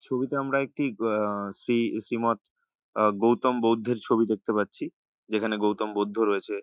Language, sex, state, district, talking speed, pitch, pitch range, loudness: Bengali, male, West Bengal, North 24 Parganas, 145 wpm, 110 Hz, 105-120 Hz, -27 LUFS